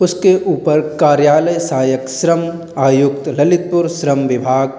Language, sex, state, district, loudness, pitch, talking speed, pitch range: Hindi, male, Uttar Pradesh, Lalitpur, -14 LUFS, 150 Hz, 125 wpm, 135-170 Hz